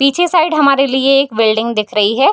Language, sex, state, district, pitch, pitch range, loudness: Hindi, female, Bihar, Darbhanga, 275 Hz, 225-280 Hz, -12 LUFS